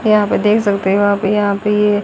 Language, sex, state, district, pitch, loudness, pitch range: Hindi, female, Haryana, Rohtak, 205 Hz, -14 LUFS, 200-210 Hz